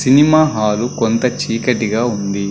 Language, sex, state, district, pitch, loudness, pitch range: Telugu, male, Telangana, Karimnagar, 120 Hz, -15 LUFS, 110-130 Hz